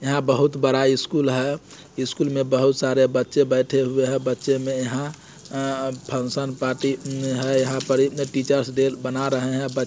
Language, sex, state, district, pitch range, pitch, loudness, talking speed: Hindi, male, Bihar, Muzaffarpur, 130-140 Hz, 135 Hz, -22 LUFS, 175 wpm